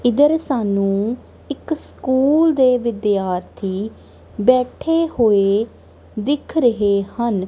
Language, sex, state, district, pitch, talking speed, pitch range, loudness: Punjabi, female, Punjab, Kapurthala, 235 Hz, 90 wpm, 200-275 Hz, -18 LUFS